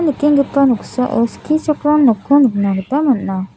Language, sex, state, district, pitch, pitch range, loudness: Garo, female, Meghalaya, South Garo Hills, 270 Hz, 220-295 Hz, -15 LUFS